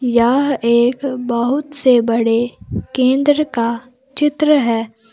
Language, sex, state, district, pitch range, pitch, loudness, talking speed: Hindi, female, Jharkhand, Palamu, 235-280 Hz, 250 Hz, -16 LUFS, 105 wpm